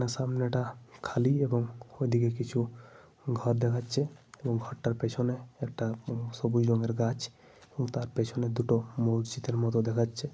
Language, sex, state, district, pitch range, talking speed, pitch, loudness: Bengali, male, Jharkhand, Sahebganj, 115-125 Hz, 130 wpm, 120 Hz, -31 LUFS